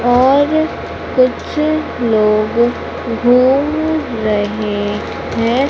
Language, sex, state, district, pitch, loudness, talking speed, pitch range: Hindi, female, Madhya Pradesh, Umaria, 245 Hz, -15 LUFS, 65 wpm, 215-280 Hz